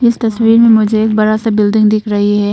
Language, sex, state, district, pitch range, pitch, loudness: Hindi, female, Arunachal Pradesh, Papum Pare, 210-225 Hz, 215 Hz, -11 LUFS